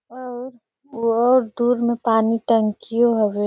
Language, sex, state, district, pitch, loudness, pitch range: Surgujia, female, Chhattisgarh, Sarguja, 235 Hz, -19 LUFS, 225-245 Hz